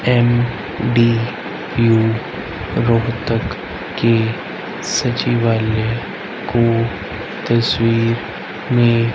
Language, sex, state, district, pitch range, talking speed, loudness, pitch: Hindi, male, Haryana, Rohtak, 110-115 Hz, 45 wpm, -18 LUFS, 115 Hz